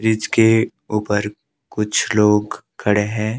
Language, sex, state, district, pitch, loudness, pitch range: Hindi, male, Himachal Pradesh, Shimla, 105 Hz, -18 LUFS, 105-110 Hz